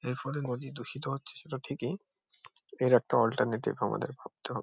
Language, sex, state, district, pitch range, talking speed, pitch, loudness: Bengali, male, West Bengal, Kolkata, 130-160 Hz, 170 wpm, 135 Hz, -32 LUFS